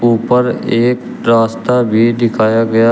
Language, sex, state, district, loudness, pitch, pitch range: Hindi, male, Uttar Pradesh, Shamli, -13 LUFS, 115 Hz, 115-120 Hz